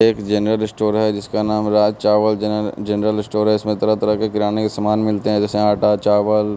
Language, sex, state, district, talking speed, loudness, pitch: Hindi, male, Bihar, West Champaran, 210 wpm, -18 LUFS, 105 Hz